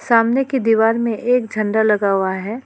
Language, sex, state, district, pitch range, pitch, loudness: Hindi, female, West Bengal, Alipurduar, 210-245 Hz, 225 Hz, -17 LUFS